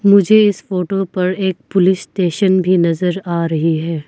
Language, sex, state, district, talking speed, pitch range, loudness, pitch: Hindi, female, Arunachal Pradesh, Papum Pare, 175 wpm, 170-195 Hz, -15 LUFS, 185 Hz